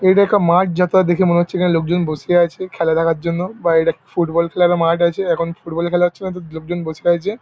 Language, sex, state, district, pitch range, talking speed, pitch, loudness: Bengali, male, West Bengal, Paschim Medinipur, 165-180 Hz, 275 wpm, 175 Hz, -17 LUFS